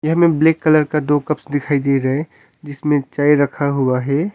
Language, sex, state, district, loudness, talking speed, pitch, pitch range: Hindi, male, Arunachal Pradesh, Longding, -17 LUFS, 180 wpm, 145 Hz, 140-155 Hz